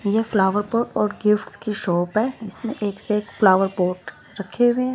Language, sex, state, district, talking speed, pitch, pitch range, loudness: Hindi, female, Odisha, Malkangiri, 195 wpm, 210 Hz, 195-225 Hz, -21 LUFS